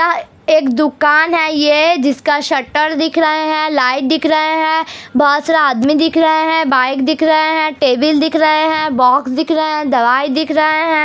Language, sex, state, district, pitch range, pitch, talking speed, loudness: Hindi, female, Uttar Pradesh, Hamirpur, 290-315 Hz, 310 Hz, 195 wpm, -13 LUFS